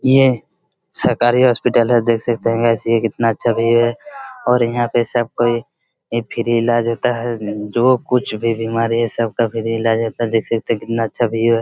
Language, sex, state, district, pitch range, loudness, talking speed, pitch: Hindi, male, Jharkhand, Jamtara, 115-120 Hz, -17 LUFS, 190 wpm, 115 Hz